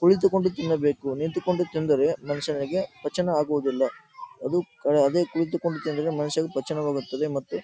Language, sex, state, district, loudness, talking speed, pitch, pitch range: Kannada, male, Karnataka, Dharwad, -26 LUFS, 100 wpm, 155 Hz, 145-175 Hz